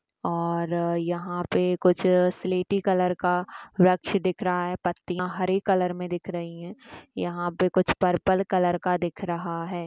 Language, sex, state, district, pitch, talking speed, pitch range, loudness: Hindi, female, Bihar, Jamui, 180 Hz, 165 wpm, 175-185 Hz, -25 LUFS